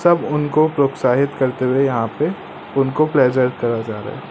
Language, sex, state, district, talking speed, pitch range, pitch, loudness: Hindi, male, Madhya Pradesh, Katni, 165 wpm, 125-145 Hz, 135 Hz, -18 LUFS